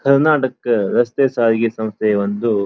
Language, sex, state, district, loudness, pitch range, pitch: Kannada, male, Karnataka, Dharwad, -17 LUFS, 110-130 Hz, 115 Hz